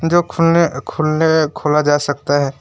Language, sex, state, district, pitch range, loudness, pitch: Hindi, male, West Bengal, Alipurduar, 145-165 Hz, -15 LUFS, 155 Hz